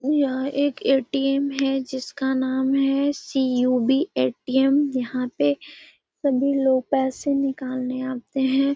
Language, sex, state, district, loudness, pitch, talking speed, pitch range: Hindi, female, Bihar, Gaya, -23 LUFS, 270 Hz, 115 wpm, 255-275 Hz